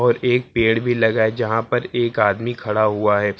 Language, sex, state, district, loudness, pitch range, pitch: Hindi, male, Uttar Pradesh, Lucknow, -19 LUFS, 110-120 Hz, 115 Hz